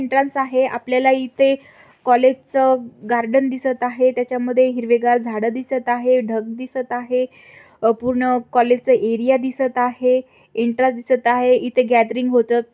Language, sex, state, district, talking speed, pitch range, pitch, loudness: Marathi, female, Maharashtra, Aurangabad, 125 wpm, 240-260 Hz, 250 Hz, -18 LUFS